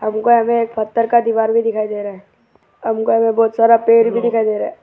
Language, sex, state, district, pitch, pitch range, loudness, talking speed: Hindi, male, Arunachal Pradesh, Lower Dibang Valley, 225 Hz, 215-230 Hz, -15 LUFS, 260 wpm